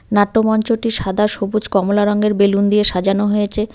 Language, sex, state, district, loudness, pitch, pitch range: Bengali, female, West Bengal, Cooch Behar, -15 LUFS, 210 Hz, 200-215 Hz